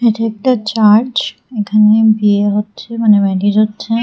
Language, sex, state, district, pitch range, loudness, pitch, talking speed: Bengali, female, Tripura, West Tripura, 210-225 Hz, -13 LUFS, 215 Hz, 135 wpm